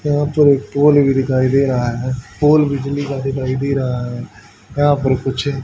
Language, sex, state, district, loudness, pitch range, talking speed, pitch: Hindi, male, Haryana, Charkhi Dadri, -16 LUFS, 130-145 Hz, 200 wpm, 135 Hz